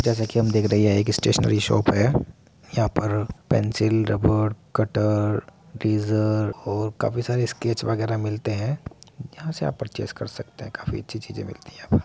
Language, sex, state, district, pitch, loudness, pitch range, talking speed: Hindi, male, Uttar Pradesh, Muzaffarnagar, 110 Hz, -24 LUFS, 105-115 Hz, 190 wpm